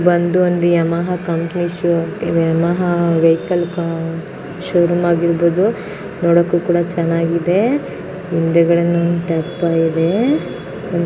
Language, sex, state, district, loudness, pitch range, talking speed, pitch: Kannada, female, Karnataka, Shimoga, -16 LUFS, 170-175 Hz, 55 wpm, 170 Hz